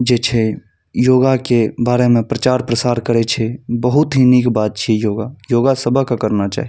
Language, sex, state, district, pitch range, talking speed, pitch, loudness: Maithili, male, Bihar, Saharsa, 115-130 Hz, 170 wpm, 120 Hz, -15 LUFS